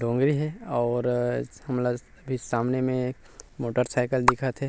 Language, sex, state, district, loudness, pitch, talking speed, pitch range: Chhattisgarhi, male, Chhattisgarh, Rajnandgaon, -27 LUFS, 125 Hz, 130 wpm, 120-130 Hz